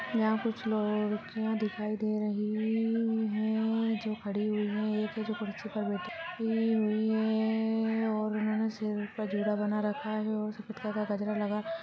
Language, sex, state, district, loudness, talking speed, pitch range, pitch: Hindi, female, Rajasthan, Churu, -32 LUFS, 185 wpm, 210-220 Hz, 215 Hz